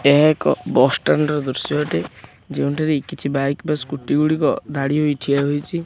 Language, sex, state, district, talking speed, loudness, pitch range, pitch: Odia, male, Odisha, Khordha, 175 wpm, -19 LUFS, 140-155 Hz, 150 Hz